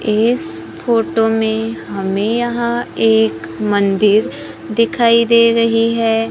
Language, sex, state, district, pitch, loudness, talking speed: Hindi, female, Maharashtra, Gondia, 205 Hz, -15 LUFS, 105 wpm